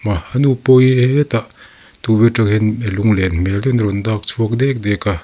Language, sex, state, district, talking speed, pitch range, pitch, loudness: Mizo, male, Mizoram, Aizawl, 215 wpm, 105-125 Hz, 110 Hz, -15 LUFS